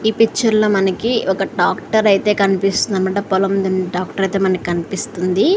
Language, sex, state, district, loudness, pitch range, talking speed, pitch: Telugu, female, Andhra Pradesh, Srikakulam, -17 LUFS, 190-215 Hz, 160 wpm, 195 Hz